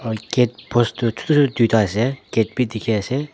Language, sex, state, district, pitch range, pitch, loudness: Nagamese, male, Nagaland, Dimapur, 110-125 Hz, 115 Hz, -19 LUFS